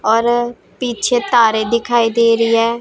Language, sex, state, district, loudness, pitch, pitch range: Hindi, female, Punjab, Pathankot, -15 LUFS, 235 Hz, 230-240 Hz